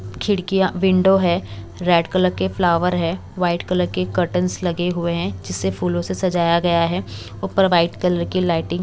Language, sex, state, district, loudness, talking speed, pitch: Hindi, female, Bihar, West Champaran, -19 LUFS, 185 wpm, 175 Hz